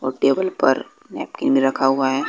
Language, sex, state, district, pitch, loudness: Hindi, male, Bihar, West Champaran, 135 Hz, -19 LUFS